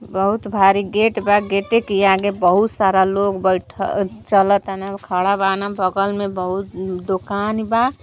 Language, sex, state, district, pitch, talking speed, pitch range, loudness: Bhojpuri, female, Uttar Pradesh, Gorakhpur, 195 Hz, 155 wpm, 190-205 Hz, -18 LUFS